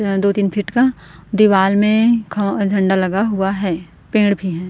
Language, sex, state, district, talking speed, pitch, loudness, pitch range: Hindi, female, Chhattisgarh, Korba, 180 wpm, 200 Hz, -16 LUFS, 190-210 Hz